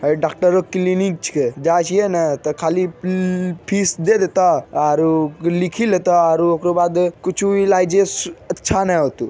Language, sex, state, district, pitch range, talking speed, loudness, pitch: Magahi, male, Bihar, Jamui, 165-185 Hz, 160 wpm, -17 LUFS, 180 Hz